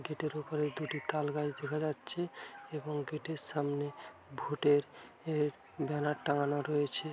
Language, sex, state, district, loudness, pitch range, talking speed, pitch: Bengali, male, West Bengal, Dakshin Dinajpur, -36 LUFS, 145-155 Hz, 145 wpm, 150 Hz